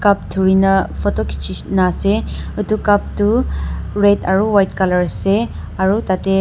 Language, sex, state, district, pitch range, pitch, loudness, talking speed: Nagamese, female, Nagaland, Dimapur, 180-205 Hz, 190 Hz, -17 LUFS, 150 wpm